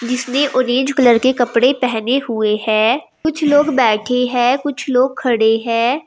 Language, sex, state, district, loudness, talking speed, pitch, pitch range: Hindi, female, Uttar Pradesh, Shamli, -15 LUFS, 160 wpm, 250 Hz, 230-270 Hz